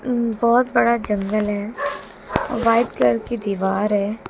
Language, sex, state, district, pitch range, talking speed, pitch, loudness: Hindi, female, Haryana, Jhajjar, 205-235 Hz, 140 wpm, 220 Hz, -20 LUFS